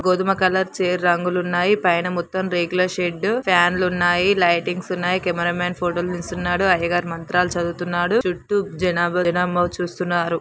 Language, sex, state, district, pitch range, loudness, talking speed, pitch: Telugu, male, Telangana, Karimnagar, 175-185 Hz, -20 LUFS, 160 wpm, 180 Hz